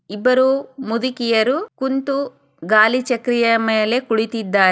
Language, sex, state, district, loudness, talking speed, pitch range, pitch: Kannada, female, Karnataka, Chamarajanagar, -18 LUFS, 90 wpm, 220-260 Hz, 235 Hz